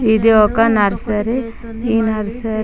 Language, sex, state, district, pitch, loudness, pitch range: Telugu, female, Andhra Pradesh, Chittoor, 225 Hz, -16 LUFS, 215-230 Hz